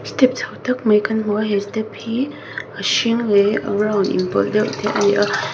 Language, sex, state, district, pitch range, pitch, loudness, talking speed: Mizo, female, Mizoram, Aizawl, 205-230 Hz, 215 Hz, -18 LUFS, 215 wpm